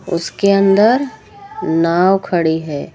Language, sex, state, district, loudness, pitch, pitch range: Hindi, female, Uttar Pradesh, Lucknow, -14 LUFS, 190 Hz, 165-205 Hz